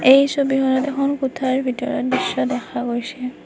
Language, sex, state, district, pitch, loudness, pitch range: Assamese, female, Assam, Kamrup Metropolitan, 260 Hz, -20 LUFS, 250-270 Hz